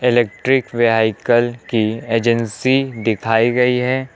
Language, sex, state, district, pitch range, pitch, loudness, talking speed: Hindi, male, Uttar Pradesh, Lucknow, 115-125 Hz, 120 Hz, -17 LUFS, 100 wpm